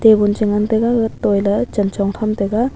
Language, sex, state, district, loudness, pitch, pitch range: Wancho, female, Arunachal Pradesh, Longding, -17 LUFS, 210 Hz, 205-225 Hz